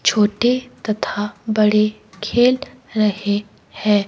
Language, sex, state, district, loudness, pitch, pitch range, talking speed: Hindi, female, Himachal Pradesh, Shimla, -19 LUFS, 215 Hz, 210-235 Hz, 90 wpm